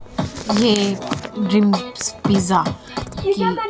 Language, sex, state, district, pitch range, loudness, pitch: Hindi, female, Haryana, Jhajjar, 195-215 Hz, -19 LUFS, 205 Hz